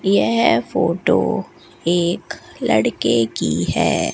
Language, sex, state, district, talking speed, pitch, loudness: Hindi, female, Rajasthan, Bikaner, 85 wpm, 175 Hz, -18 LUFS